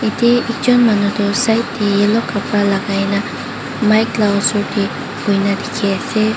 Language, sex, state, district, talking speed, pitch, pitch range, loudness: Nagamese, female, Mizoram, Aizawl, 150 wpm, 210 Hz, 200-230 Hz, -16 LUFS